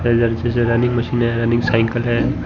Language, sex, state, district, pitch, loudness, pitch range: Hindi, male, Gujarat, Gandhinagar, 115 Hz, -17 LUFS, 115-120 Hz